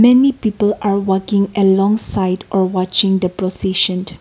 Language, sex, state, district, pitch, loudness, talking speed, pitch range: English, female, Nagaland, Kohima, 195 Hz, -15 LUFS, 140 wpm, 185-205 Hz